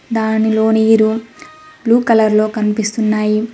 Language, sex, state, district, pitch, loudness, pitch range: Telugu, female, Telangana, Mahabubabad, 220 Hz, -14 LUFS, 215-230 Hz